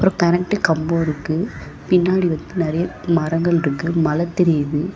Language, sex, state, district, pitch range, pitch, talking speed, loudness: Tamil, female, Tamil Nadu, Chennai, 160-180 Hz, 170 Hz, 110 wpm, -19 LUFS